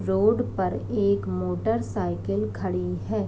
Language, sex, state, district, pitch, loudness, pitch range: Hindi, female, Uttar Pradesh, Varanasi, 95 Hz, -26 LUFS, 90-105 Hz